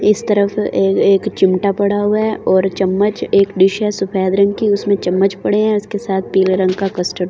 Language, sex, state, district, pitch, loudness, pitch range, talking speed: Hindi, female, Delhi, New Delhi, 195 Hz, -15 LUFS, 190-205 Hz, 215 wpm